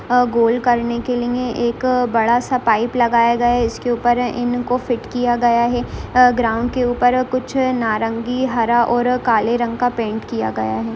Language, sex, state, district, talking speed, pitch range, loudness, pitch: Hindi, female, Rajasthan, Churu, 185 wpm, 235-245 Hz, -17 LUFS, 240 Hz